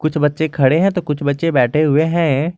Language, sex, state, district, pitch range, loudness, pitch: Hindi, male, Jharkhand, Garhwa, 145-165 Hz, -16 LUFS, 155 Hz